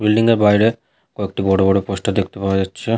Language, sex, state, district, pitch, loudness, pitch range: Bengali, male, West Bengal, Paschim Medinipur, 100 Hz, -17 LUFS, 95-110 Hz